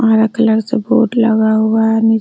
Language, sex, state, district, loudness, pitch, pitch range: Hindi, female, Bihar, Araria, -13 LUFS, 225 Hz, 220-230 Hz